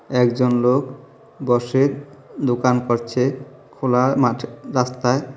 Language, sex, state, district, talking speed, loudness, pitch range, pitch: Bengali, male, Tripura, South Tripura, 90 wpm, -20 LUFS, 125-135 Hz, 125 Hz